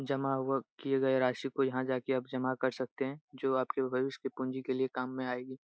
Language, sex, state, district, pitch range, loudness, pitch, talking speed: Hindi, male, Bihar, Jahanabad, 130-135 Hz, -34 LUFS, 130 Hz, 255 wpm